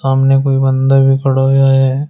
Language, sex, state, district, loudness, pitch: Hindi, male, Uttar Pradesh, Shamli, -11 LUFS, 135 Hz